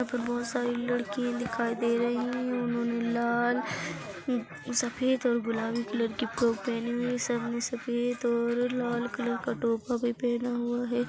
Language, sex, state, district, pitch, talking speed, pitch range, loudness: Hindi, female, Chhattisgarh, Korba, 240 Hz, 175 wpm, 235-245 Hz, -30 LUFS